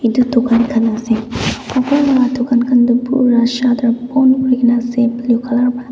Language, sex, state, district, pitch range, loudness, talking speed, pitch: Nagamese, female, Nagaland, Dimapur, 240-250 Hz, -14 LUFS, 150 wpm, 245 Hz